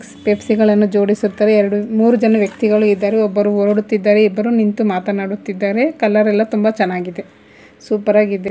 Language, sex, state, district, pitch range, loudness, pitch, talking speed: Kannada, female, Karnataka, Bangalore, 205-215 Hz, -15 LUFS, 210 Hz, 120 wpm